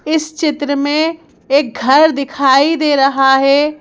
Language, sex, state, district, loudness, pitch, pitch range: Hindi, female, Madhya Pradesh, Bhopal, -13 LUFS, 285 Hz, 275-310 Hz